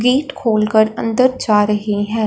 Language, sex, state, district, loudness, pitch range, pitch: Hindi, female, Punjab, Fazilka, -16 LUFS, 210-250 Hz, 220 Hz